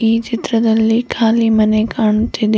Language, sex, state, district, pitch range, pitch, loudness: Kannada, female, Karnataka, Bidar, 215-230 Hz, 225 Hz, -14 LUFS